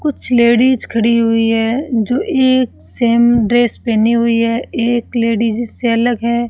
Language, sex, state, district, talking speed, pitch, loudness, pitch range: Hindi, female, Rajasthan, Bikaner, 155 wpm, 235 Hz, -14 LUFS, 230-245 Hz